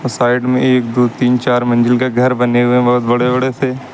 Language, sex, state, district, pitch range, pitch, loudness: Hindi, male, Uttar Pradesh, Lucknow, 120-125 Hz, 125 Hz, -13 LUFS